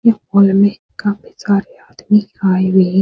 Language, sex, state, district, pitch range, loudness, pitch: Hindi, female, Bihar, Supaul, 190-205 Hz, -14 LUFS, 200 Hz